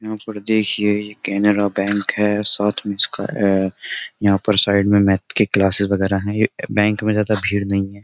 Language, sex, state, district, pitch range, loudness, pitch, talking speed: Hindi, male, Uttar Pradesh, Jyotiba Phule Nagar, 100-105 Hz, -18 LUFS, 105 Hz, 195 wpm